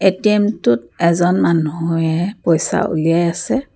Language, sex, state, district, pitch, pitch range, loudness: Assamese, female, Assam, Kamrup Metropolitan, 170 Hz, 165-190 Hz, -16 LUFS